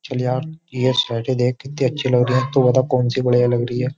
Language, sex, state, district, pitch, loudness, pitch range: Hindi, male, Uttar Pradesh, Jyotiba Phule Nagar, 125 Hz, -19 LUFS, 125-130 Hz